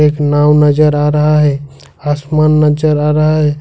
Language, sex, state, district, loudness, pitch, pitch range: Hindi, male, Jharkhand, Ranchi, -11 LUFS, 150 Hz, 145-150 Hz